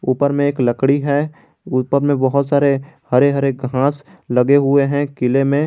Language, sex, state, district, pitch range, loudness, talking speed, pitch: Hindi, male, Jharkhand, Garhwa, 130-145 Hz, -16 LUFS, 180 wpm, 140 Hz